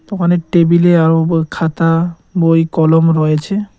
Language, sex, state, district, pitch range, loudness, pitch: Bengali, male, West Bengal, Cooch Behar, 165-175 Hz, -13 LUFS, 165 Hz